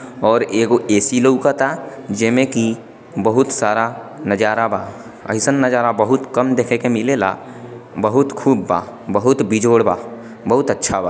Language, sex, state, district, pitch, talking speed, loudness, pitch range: Hindi, male, Bihar, East Champaran, 120 Hz, 145 wpm, -16 LUFS, 115-135 Hz